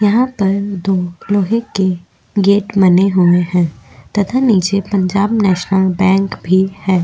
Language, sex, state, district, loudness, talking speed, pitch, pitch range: Hindi, female, Uttar Pradesh, Jyotiba Phule Nagar, -14 LUFS, 135 wpm, 195 Hz, 185-200 Hz